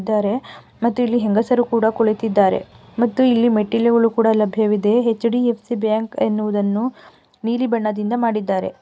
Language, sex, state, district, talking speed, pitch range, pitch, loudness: Kannada, female, Karnataka, Gulbarga, 135 wpm, 215-235 Hz, 225 Hz, -18 LUFS